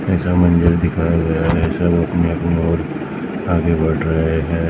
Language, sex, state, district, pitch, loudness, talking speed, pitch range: Hindi, male, Maharashtra, Mumbai Suburban, 85 Hz, -17 LUFS, 165 wpm, 80-85 Hz